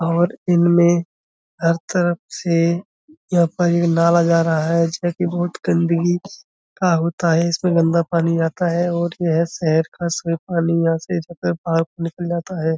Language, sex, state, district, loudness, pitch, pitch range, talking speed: Hindi, male, Uttar Pradesh, Budaun, -19 LUFS, 170 Hz, 165-175 Hz, 175 wpm